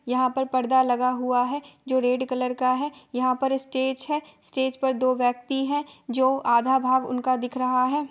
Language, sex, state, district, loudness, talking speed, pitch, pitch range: Hindi, female, Bihar, Gopalganj, -24 LUFS, 200 wpm, 260 Hz, 255-265 Hz